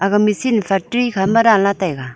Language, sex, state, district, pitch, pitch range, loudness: Wancho, female, Arunachal Pradesh, Longding, 200 Hz, 190-225 Hz, -16 LUFS